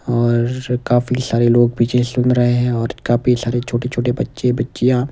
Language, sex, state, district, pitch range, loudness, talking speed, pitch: Hindi, male, Himachal Pradesh, Shimla, 120-125 Hz, -17 LUFS, 165 wpm, 120 Hz